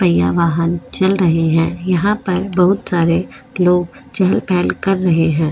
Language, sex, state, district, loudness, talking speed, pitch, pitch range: Hindi, female, Goa, North and South Goa, -16 LUFS, 165 wpm, 180 Hz, 165-190 Hz